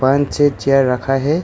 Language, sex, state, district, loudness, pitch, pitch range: Hindi, male, Arunachal Pradesh, Longding, -16 LUFS, 135 Hz, 135-145 Hz